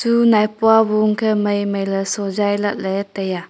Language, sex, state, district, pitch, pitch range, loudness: Wancho, female, Arunachal Pradesh, Longding, 205 Hz, 195-215 Hz, -18 LUFS